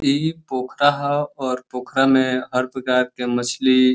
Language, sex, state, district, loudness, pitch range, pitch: Bhojpuri, male, Uttar Pradesh, Deoria, -20 LUFS, 125-140 Hz, 130 Hz